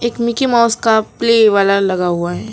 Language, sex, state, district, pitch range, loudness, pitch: Hindi, female, West Bengal, Alipurduar, 195-235 Hz, -14 LUFS, 220 Hz